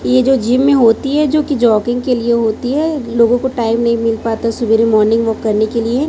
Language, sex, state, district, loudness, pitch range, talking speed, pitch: Hindi, female, Chhattisgarh, Raipur, -14 LUFS, 225-260 Hz, 245 wpm, 235 Hz